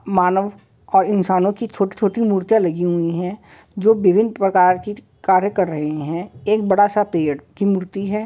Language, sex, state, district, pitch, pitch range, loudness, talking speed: Hindi, female, Uttar Pradesh, Jalaun, 195 Hz, 180-205 Hz, -18 LUFS, 165 wpm